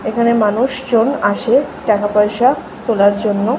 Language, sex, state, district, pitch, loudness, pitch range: Bengali, female, West Bengal, Malda, 225 Hz, -15 LUFS, 210-255 Hz